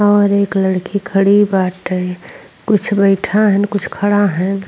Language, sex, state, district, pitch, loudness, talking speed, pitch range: Bhojpuri, female, Uttar Pradesh, Ghazipur, 200 Hz, -14 LUFS, 140 wpm, 190-205 Hz